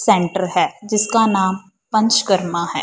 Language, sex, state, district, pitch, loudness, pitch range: Hindi, female, Punjab, Fazilka, 200 Hz, -17 LUFS, 185-220 Hz